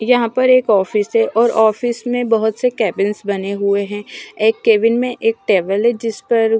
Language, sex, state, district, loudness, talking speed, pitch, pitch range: Hindi, male, Punjab, Fazilka, -16 LUFS, 210 wpm, 225 Hz, 205-240 Hz